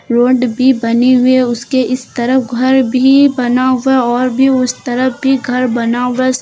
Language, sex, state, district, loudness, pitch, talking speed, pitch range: Hindi, female, Uttar Pradesh, Lucknow, -12 LUFS, 255 Hz, 195 wpm, 245-260 Hz